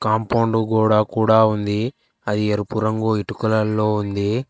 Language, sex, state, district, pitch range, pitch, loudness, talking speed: Telugu, male, Telangana, Hyderabad, 105-110 Hz, 110 Hz, -19 LUFS, 120 wpm